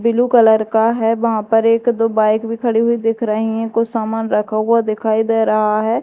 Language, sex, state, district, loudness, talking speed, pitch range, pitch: Hindi, female, Madhya Pradesh, Dhar, -16 LUFS, 230 wpm, 220-230 Hz, 225 Hz